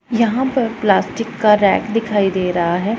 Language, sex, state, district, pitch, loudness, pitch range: Hindi, female, Punjab, Pathankot, 215 Hz, -16 LUFS, 195-230 Hz